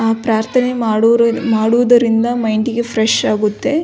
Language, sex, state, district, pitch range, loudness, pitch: Kannada, female, Karnataka, Belgaum, 220-240 Hz, -14 LUFS, 230 Hz